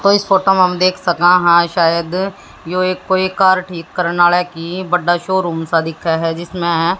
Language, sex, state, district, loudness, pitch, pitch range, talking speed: Hindi, female, Haryana, Jhajjar, -15 LUFS, 180 Hz, 170-185 Hz, 205 wpm